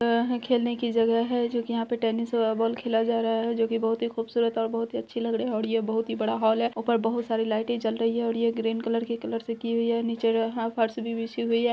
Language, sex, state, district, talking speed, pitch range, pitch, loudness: Hindi, female, Bihar, Araria, 305 wpm, 225-235 Hz, 230 Hz, -27 LUFS